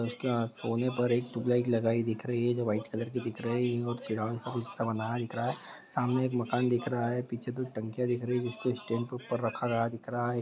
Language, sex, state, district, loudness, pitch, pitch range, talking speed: Hindi, male, Jharkhand, Sahebganj, -32 LUFS, 120 Hz, 115-125 Hz, 225 wpm